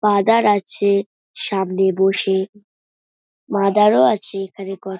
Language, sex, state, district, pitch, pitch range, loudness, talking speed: Bengali, female, West Bengal, North 24 Parganas, 200 Hz, 195-210 Hz, -18 LUFS, 85 wpm